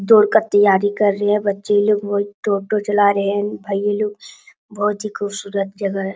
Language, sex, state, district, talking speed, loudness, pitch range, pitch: Hindi, male, Bihar, Supaul, 205 wpm, -18 LUFS, 200-210 Hz, 205 Hz